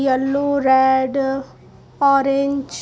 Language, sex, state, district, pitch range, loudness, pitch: Hindi, female, Jharkhand, Sahebganj, 265-280 Hz, -17 LUFS, 275 Hz